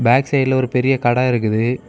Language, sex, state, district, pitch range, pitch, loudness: Tamil, male, Tamil Nadu, Kanyakumari, 120-130 Hz, 125 Hz, -17 LUFS